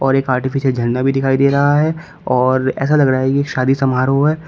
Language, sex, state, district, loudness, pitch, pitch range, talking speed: Hindi, male, Uttar Pradesh, Shamli, -15 LUFS, 135 Hz, 130-140 Hz, 240 wpm